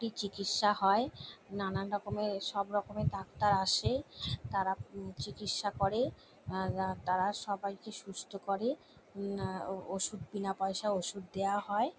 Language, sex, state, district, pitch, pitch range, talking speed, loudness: Bengali, female, West Bengal, Jalpaiguri, 200 Hz, 195-205 Hz, 125 wpm, -35 LUFS